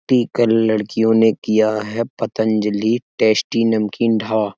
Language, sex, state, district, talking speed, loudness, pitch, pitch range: Hindi, male, Uttar Pradesh, Etah, 130 wpm, -17 LUFS, 110 Hz, 110-115 Hz